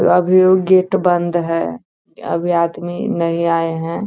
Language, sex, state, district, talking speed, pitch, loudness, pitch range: Hindi, female, Bihar, Saran, 150 wpm, 175 Hz, -16 LUFS, 165-185 Hz